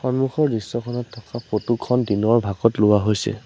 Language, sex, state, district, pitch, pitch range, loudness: Assamese, male, Assam, Sonitpur, 115 Hz, 105-120 Hz, -21 LUFS